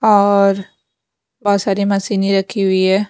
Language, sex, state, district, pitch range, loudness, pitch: Hindi, female, Himachal Pradesh, Shimla, 195-200 Hz, -15 LUFS, 200 Hz